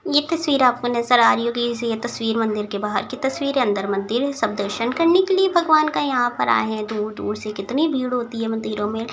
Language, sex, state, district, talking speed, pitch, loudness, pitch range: Hindi, female, Bihar, Muzaffarpur, 245 wpm, 240 Hz, -20 LUFS, 215-275 Hz